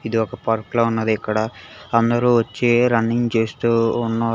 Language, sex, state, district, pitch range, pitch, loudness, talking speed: Telugu, male, Telangana, Hyderabad, 110-120 Hz, 115 Hz, -19 LUFS, 150 wpm